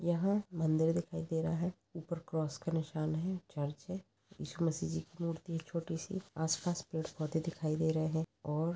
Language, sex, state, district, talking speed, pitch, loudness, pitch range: Hindi, female, Chhattisgarh, Raigarh, 200 wpm, 165 Hz, -37 LUFS, 160-170 Hz